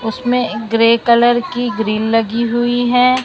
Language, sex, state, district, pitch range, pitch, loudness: Hindi, male, Maharashtra, Mumbai Suburban, 225-245 Hz, 240 Hz, -14 LUFS